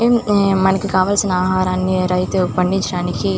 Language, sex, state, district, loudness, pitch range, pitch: Telugu, female, Andhra Pradesh, Chittoor, -17 LUFS, 180-195 Hz, 185 Hz